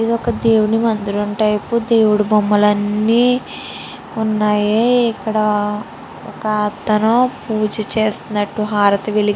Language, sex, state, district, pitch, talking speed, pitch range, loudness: Telugu, female, Andhra Pradesh, Srikakulam, 215 Hz, 95 wpm, 210-225 Hz, -16 LUFS